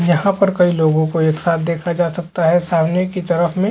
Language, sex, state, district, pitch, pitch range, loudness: Chhattisgarhi, male, Chhattisgarh, Jashpur, 170 Hz, 165-180 Hz, -16 LUFS